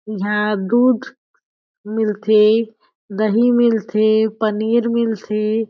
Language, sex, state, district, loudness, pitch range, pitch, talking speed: Chhattisgarhi, female, Chhattisgarh, Jashpur, -17 LUFS, 215-230 Hz, 220 Hz, 75 wpm